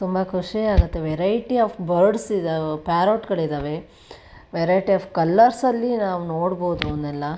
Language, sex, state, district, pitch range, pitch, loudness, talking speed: Kannada, female, Karnataka, Shimoga, 165-210 Hz, 180 Hz, -21 LUFS, 130 wpm